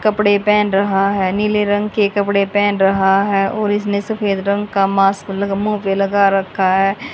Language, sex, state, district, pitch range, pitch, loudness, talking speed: Hindi, female, Haryana, Rohtak, 195-205 Hz, 200 Hz, -16 LUFS, 185 wpm